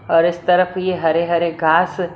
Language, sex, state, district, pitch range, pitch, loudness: Hindi, female, Maharashtra, Mumbai Suburban, 165-180 Hz, 170 Hz, -17 LUFS